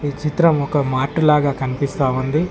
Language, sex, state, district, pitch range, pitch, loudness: Telugu, male, Telangana, Mahabubabad, 135-150 Hz, 145 Hz, -18 LUFS